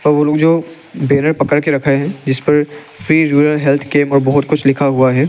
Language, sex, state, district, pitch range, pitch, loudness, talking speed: Hindi, male, Arunachal Pradesh, Lower Dibang Valley, 140-150 Hz, 145 Hz, -13 LUFS, 215 wpm